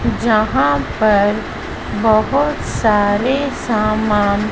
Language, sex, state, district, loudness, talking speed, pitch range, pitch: Hindi, female, Madhya Pradesh, Dhar, -16 LUFS, 65 wpm, 205-230 Hz, 215 Hz